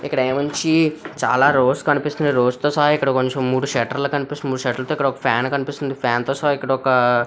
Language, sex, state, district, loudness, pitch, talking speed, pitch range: Telugu, male, Andhra Pradesh, Krishna, -19 LUFS, 135 Hz, 175 wpm, 130-145 Hz